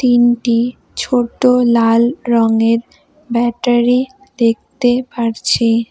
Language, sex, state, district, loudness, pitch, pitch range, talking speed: Bengali, female, West Bengal, Cooch Behar, -14 LUFS, 240 Hz, 230-250 Hz, 70 wpm